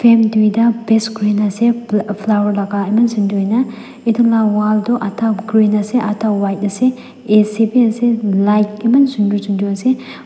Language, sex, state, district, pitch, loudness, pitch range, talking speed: Nagamese, female, Nagaland, Dimapur, 215 Hz, -15 LUFS, 210-235 Hz, 160 wpm